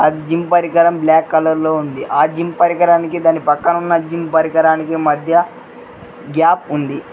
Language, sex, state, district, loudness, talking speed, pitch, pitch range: Telugu, male, Telangana, Mahabubabad, -14 LUFS, 135 wpm, 165 Hz, 160-170 Hz